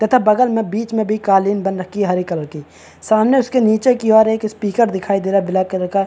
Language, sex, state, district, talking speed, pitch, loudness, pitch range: Hindi, male, Chhattisgarh, Bastar, 265 wpm, 210 Hz, -16 LUFS, 190-220 Hz